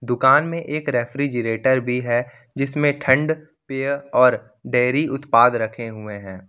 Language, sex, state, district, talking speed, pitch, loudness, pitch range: Hindi, male, Jharkhand, Ranchi, 140 wpm, 130 Hz, -20 LUFS, 120-140 Hz